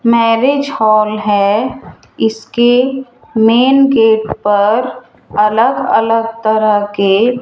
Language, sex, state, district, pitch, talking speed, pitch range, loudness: Hindi, female, Rajasthan, Jaipur, 225 Hz, 90 wpm, 215-245 Hz, -12 LUFS